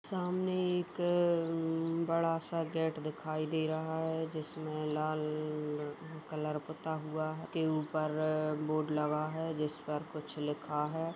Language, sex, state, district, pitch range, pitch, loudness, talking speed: Hindi, female, Uttar Pradesh, Etah, 155-165 Hz, 155 Hz, -36 LUFS, 145 wpm